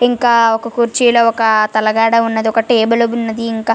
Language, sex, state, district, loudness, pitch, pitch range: Telugu, female, Telangana, Karimnagar, -13 LUFS, 230 Hz, 225-235 Hz